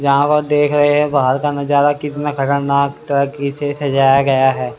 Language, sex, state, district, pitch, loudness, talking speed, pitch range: Hindi, male, Haryana, Rohtak, 140 Hz, -15 LUFS, 190 wpm, 140-145 Hz